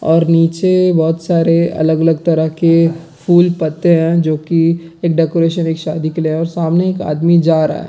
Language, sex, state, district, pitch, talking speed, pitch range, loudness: Hindi, male, Bihar, Gaya, 165 Hz, 195 wpm, 160-170 Hz, -13 LUFS